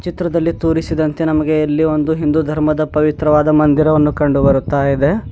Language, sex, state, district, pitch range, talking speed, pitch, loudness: Kannada, male, Karnataka, Bidar, 150-160 Hz, 135 wpm, 155 Hz, -15 LUFS